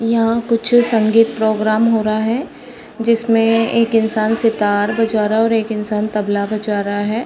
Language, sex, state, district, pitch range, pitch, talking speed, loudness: Hindi, female, Uttar Pradesh, Varanasi, 215-230 Hz, 225 Hz, 180 wpm, -16 LUFS